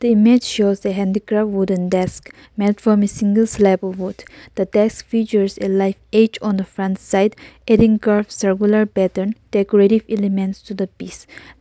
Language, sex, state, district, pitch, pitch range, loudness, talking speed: English, female, Nagaland, Kohima, 205 Hz, 195-215 Hz, -17 LUFS, 170 wpm